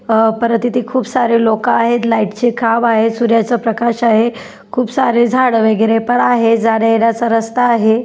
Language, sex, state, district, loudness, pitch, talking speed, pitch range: Marathi, female, Maharashtra, Dhule, -13 LUFS, 230 Hz, 170 wpm, 225-240 Hz